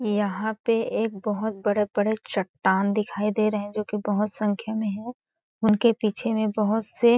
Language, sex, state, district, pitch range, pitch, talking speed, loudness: Hindi, female, Chhattisgarh, Balrampur, 205-220 Hz, 215 Hz, 185 wpm, -25 LUFS